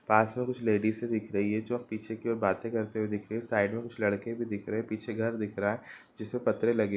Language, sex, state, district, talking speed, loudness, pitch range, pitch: Hindi, male, Bihar, Gopalganj, 310 wpm, -31 LUFS, 105-115 Hz, 110 Hz